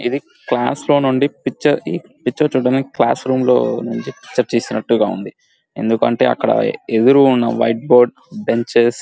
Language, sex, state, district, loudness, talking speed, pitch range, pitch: Telugu, male, Andhra Pradesh, Guntur, -16 LUFS, 145 wpm, 115-135 Hz, 125 Hz